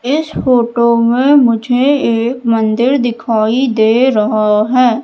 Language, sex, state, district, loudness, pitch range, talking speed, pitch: Hindi, female, Madhya Pradesh, Katni, -12 LUFS, 225-255 Hz, 120 wpm, 235 Hz